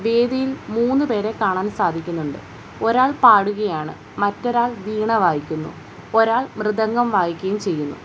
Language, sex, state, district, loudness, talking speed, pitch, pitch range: Malayalam, female, Kerala, Kollam, -20 LUFS, 105 wpm, 215 Hz, 190-240 Hz